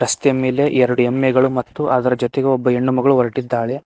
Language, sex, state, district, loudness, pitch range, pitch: Kannada, male, Karnataka, Koppal, -17 LUFS, 125-135 Hz, 130 Hz